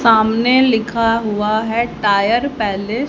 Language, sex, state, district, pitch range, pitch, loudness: Hindi, female, Haryana, Charkhi Dadri, 215-235 Hz, 225 Hz, -16 LUFS